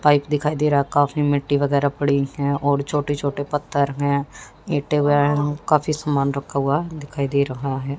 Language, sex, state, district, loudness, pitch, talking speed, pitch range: Hindi, female, Haryana, Jhajjar, -21 LUFS, 145 Hz, 180 wpm, 140-145 Hz